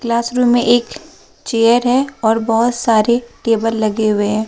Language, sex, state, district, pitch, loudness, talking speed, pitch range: Hindi, female, Bihar, West Champaran, 235 Hz, -15 LUFS, 175 wpm, 220-240 Hz